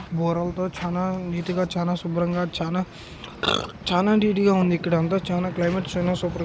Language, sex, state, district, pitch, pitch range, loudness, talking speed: Telugu, male, Andhra Pradesh, Krishna, 180 Hz, 175-185 Hz, -24 LUFS, 140 wpm